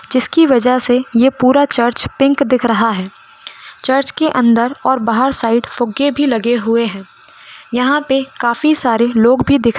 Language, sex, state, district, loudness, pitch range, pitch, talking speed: Hindi, female, Rajasthan, Nagaur, -13 LUFS, 235-270 Hz, 250 Hz, 180 wpm